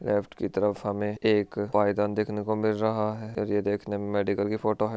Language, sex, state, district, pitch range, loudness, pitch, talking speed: Hindi, male, Rajasthan, Churu, 105-110 Hz, -27 LUFS, 105 Hz, 240 wpm